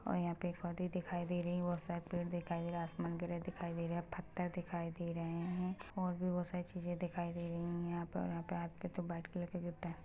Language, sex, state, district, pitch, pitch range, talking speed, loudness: Hindi, female, Chhattisgarh, Rajnandgaon, 175 Hz, 170-180 Hz, 255 wpm, -42 LUFS